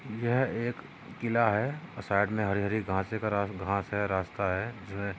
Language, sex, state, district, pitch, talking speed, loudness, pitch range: Hindi, male, Maharashtra, Sindhudurg, 105 Hz, 195 wpm, -30 LUFS, 100-115 Hz